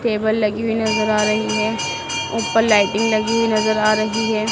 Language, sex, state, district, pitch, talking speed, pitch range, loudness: Hindi, female, Madhya Pradesh, Dhar, 220 Hz, 200 wpm, 215-225 Hz, -18 LUFS